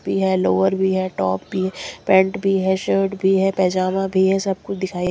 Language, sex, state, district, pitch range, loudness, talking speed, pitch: Hindi, female, Bihar, Katihar, 185-195 Hz, -19 LUFS, 225 wpm, 190 Hz